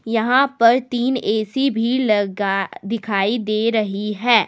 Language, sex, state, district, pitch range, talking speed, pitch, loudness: Hindi, female, Jharkhand, Deoghar, 210-245 Hz, 135 wpm, 225 Hz, -19 LUFS